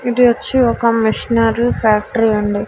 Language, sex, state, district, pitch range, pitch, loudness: Telugu, female, Andhra Pradesh, Annamaya, 220-240 Hz, 230 Hz, -15 LUFS